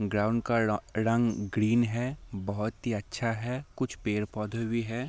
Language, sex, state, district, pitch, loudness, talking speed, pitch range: Hindi, male, Bihar, Sitamarhi, 115 Hz, -30 LUFS, 155 wpm, 105-120 Hz